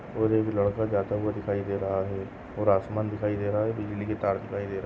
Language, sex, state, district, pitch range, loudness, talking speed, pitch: Hindi, male, Goa, North and South Goa, 100-105 Hz, -28 LUFS, 260 wpm, 105 Hz